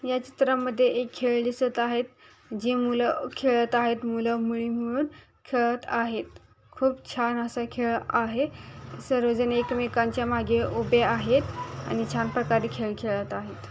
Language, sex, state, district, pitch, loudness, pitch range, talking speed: Marathi, female, Maharashtra, Solapur, 240 Hz, -27 LUFS, 230-250 Hz, 135 wpm